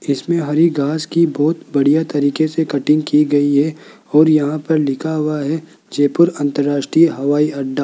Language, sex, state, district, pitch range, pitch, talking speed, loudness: Hindi, male, Rajasthan, Jaipur, 145-160 Hz, 150 Hz, 160 wpm, -16 LUFS